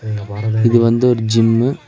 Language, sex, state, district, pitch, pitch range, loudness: Tamil, male, Tamil Nadu, Nilgiris, 115 Hz, 110-120 Hz, -15 LUFS